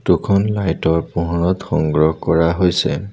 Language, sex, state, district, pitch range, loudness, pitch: Assamese, male, Assam, Sonitpur, 80-95 Hz, -17 LUFS, 85 Hz